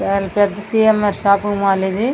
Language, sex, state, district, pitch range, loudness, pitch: Telugu, female, Andhra Pradesh, Srikakulam, 195-210 Hz, -16 LUFS, 205 Hz